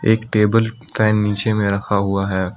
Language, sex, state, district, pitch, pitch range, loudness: Hindi, male, Assam, Kamrup Metropolitan, 105 Hz, 100-110 Hz, -18 LUFS